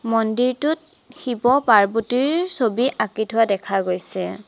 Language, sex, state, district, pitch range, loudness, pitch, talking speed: Assamese, female, Assam, Sonitpur, 210-260 Hz, -19 LUFS, 230 Hz, 105 wpm